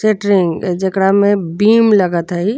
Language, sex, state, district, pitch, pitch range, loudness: Bhojpuri, female, Uttar Pradesh, Deoria, 195 Hz, 180-210 Hz, -13 LUFS